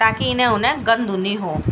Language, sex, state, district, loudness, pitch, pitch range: Garhwali, female, Uttarakhand, Tehri Garhwal, -18 LUFS, 225 Hz, 200-245 Hz